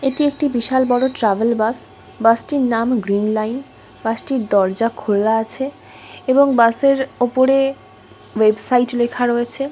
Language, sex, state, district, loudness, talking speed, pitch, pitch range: Bengali, female, West Bengal, Kolkata, -17 LUFS, 125 wpm, 245 Hz, 225-265 Hz